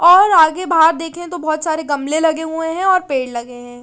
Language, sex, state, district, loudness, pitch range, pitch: Hindi, female, Chandigarh, Chandigarh, -15 LUFS, 290-345 Hz, 320 Hz